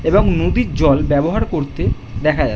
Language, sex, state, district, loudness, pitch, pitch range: Bengali, male, West Bengal, Jhargram, -17 LUFS, 145 Hz, 125-155 Hz